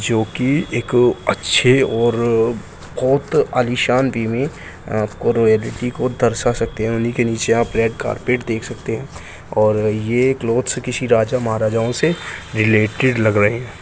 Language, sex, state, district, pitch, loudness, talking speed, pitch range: Hindi, male, Bihar, Jahanabad, 115 Hz, -18 LUFS, 150 wpm, 110-125 Hz